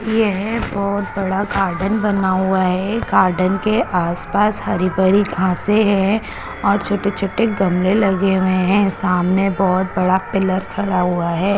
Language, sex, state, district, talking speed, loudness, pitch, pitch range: Hindi, female, Chandigarh, Chandigarh, 150 wpm, -17 LUFS, 195 Hz, 185-205 Hz